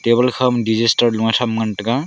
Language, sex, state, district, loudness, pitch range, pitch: Wancho, male, Arunachal Pradesh, Longding, -16 LUFS, 110-120 Hz, 115 Hz